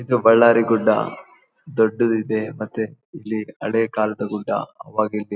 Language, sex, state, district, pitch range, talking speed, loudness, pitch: Kannada, male, Karnataka, Bellary, 110-115 Hz, 145 wpm, -20 LUFS, 110 Hz